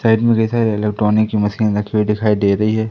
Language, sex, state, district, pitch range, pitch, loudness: Hindi, male, Madhya Pradesh, Katni, 105-110 Hz, 105 Hz, -16 LUFS